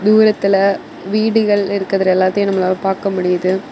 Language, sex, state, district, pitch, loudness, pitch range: Tamil, female, Tamil Nadu, Kanyakumari, 195 Hz, -15 LUFS, 185-205 Hz